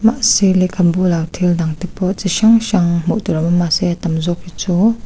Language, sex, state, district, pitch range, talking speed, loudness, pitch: Mizo, female, Mizoram, Aizawl, 170-195 Hz, 250 wpm, -15 LUFS, 180 Hz